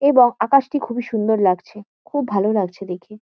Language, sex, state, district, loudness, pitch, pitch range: Bengali, female, West Bengal, Kolkata, -19 LUFS, 220 Hz, 200-260 Hz